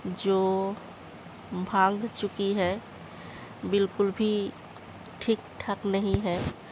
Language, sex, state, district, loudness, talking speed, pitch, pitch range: Hindi, female, Uttar Pradesh, Hamirpur, -28 LUFS, 80 wpm, 195 Hz, 190-200 Hz